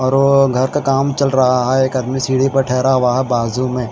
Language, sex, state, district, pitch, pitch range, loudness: Hindi, male, Haryana, Charkhi Dadri, 130 Hz, 125-135 Hz, -15 LUFS